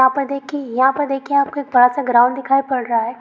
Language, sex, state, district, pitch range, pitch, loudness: Hindi, female, Rajasthan, Nagaur, 250-280 Hz, 265 Hz, -17 LUFS